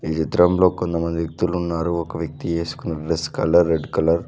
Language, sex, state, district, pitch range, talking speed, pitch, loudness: Telugu, male, Telangana, Mahabubabad, 80-90 Hz, 195 wpm, 85 Hz, -21 LUFS